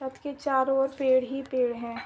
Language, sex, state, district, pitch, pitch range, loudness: Hindi, female, Uttar Pradesh, Ghazipur, 265 Hz, 255-270 Hz, -27 LUFS